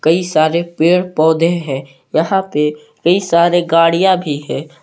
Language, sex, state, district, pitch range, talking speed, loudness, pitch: Hindi, male, Jharkhand, Palamu, 150-175 Hz, 150 wpm, -14 LUFS, 165 Hz